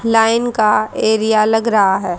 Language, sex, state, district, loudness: Hindi, female, Haryana, Jhajjar, -14 LUFS